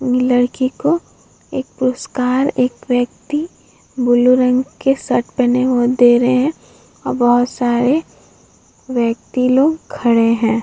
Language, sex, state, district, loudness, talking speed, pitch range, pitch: Hindi, female, Bihar, Vaishali, -16 LUFS, 130 wpm, 245-270 Hz, 250 Hz